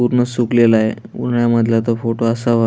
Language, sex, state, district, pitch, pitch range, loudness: Marathi, male, Maharashtra, Aurangabad, 115 Hz, 115-120 Hz, -16 LUFS